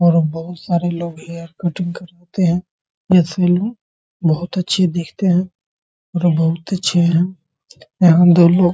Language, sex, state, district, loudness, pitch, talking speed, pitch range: Hindi, male, Bihar, Muzaffarpur, -17 LUFS, 175 Hz, 150 wpm, 170-180 Hz